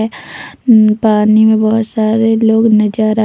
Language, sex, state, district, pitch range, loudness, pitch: Hindi, female, Jharkhand, Deoghar, 215-225 Hz, -11 LUFS, 220 Hz